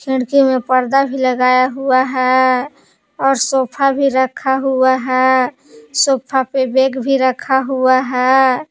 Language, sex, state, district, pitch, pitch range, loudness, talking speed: Hindi, female, Jharkhand, Palamu, 260 Hz, 255-270 Hz, -14 LUFS, 140 wpm